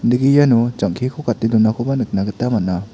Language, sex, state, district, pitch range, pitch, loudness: Garo, male, Meghalaya, West Garo Hills, 110-125 Hz, 120 Hz, -17 LUFS